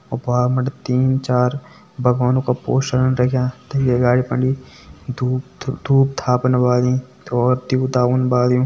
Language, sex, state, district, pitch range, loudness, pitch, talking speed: Hindi, male, Uttarakhand, Tehri Garhwal, 125-130 Hz, -18 LUFS, 125 Hz, 120 wpm